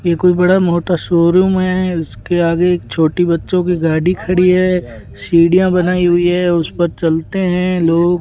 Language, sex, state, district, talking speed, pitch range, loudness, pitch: Hindi, male, Rajasthan, Bikaner, 180 wpm, 170-180 Hz, -14 LUFS, 175 Hz